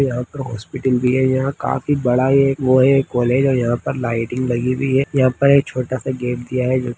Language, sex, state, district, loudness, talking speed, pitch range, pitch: Hindi, male, Bihar, Begusarai, -18 LUFS, 240 wpm, 125-135 Hz, 130 Hz